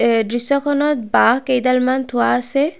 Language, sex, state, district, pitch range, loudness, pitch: Assamese, female, Assam, Kamrup Metropolitan, 240-280 Hz, -16 LUFS, 255 Hz